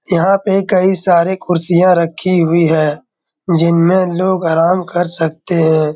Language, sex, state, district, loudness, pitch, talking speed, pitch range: Hindi, male, Bihar, Darbhanga, -13 LUFS, 175 Hz, 140 wpm, 165-185 Hz